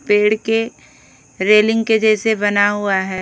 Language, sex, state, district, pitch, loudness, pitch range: Hindi, female, Odisha, Khordha, 215 Hz, -15 LUFS, 205-220 Hz